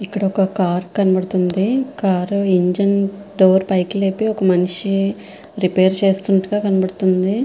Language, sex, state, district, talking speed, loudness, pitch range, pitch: Telugu, female, Andhra Pradesh, Visakhapatnam, 135 wpm, -17 LUFS, 185-200 Hz, 195 Hz